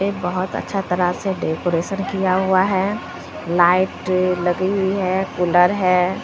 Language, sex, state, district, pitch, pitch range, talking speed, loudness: Hindi, female, Bihar, Samastipur, 185 Hz, 180-195 Hz, 145 wpm, -19 LUFS